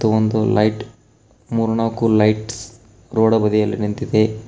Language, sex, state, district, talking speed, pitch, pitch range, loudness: Kannada, male, Karnataka, Koppal, 120 wpm, 110 Hz, 105-115 Hz, -18 LUFS